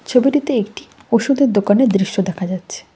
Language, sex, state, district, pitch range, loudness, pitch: Bengali, female, West Bengal, Cooch Behar, 195-270 Hz, -17 LUFS, 225 Hz